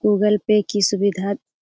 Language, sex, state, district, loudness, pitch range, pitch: Hindi, female, Bihar, Jamui, -19 LUFS, 200-210 Hz, 205 Hz